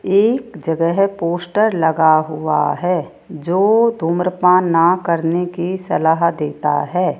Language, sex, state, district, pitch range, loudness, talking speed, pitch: Hindi, female, Rajasthan, Jaipur, 160-185 Hz, -16 LUFS, 115 wpm, 175 Hz